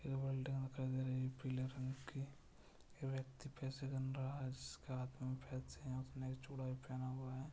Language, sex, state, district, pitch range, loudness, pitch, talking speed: Hindi, female, Uttarakhand, Uttarkashi, 130-135 Hz, -46 LUFS, 130 Hz, 225 wpm